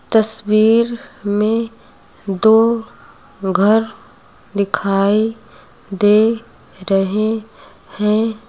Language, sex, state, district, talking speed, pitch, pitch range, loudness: Hindi, female, Uttar Pradesh, Lucknow, 55 wpm, 215 Hz, 200-225 Hz, -16 LUFS